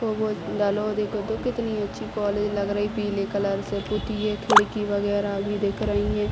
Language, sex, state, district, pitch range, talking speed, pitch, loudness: Hindi, female, Bihar, Gopalganj, 200-210 Hz, 190 wpm, 205 Hz, -25 LUFS